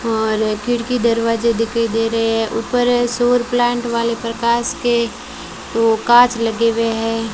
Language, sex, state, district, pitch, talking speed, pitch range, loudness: Hindi, female, Rajasthan, Bikaner, 230 Hz, 145 wpm, 225-240 Hz, -17 LUFS